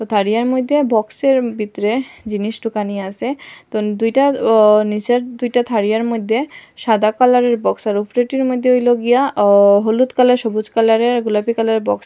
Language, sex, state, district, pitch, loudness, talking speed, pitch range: Bengali, female, Assam, Hailakandi, 225 Hz, -16 LUFS, 155 wpm, 215-250 Hz